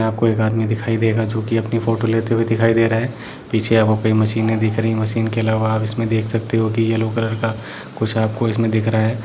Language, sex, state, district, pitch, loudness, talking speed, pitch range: Hindi, male, Jharkhand, Sahebganj, 110 Hz, -18 LUFS, 220 wpm, 110-115 Hz